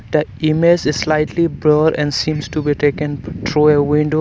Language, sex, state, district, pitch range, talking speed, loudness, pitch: English, male, Arunachal Pradesh, Longding, 145-155 Hz, 185 wpm, -16 LUFS, 150 Hz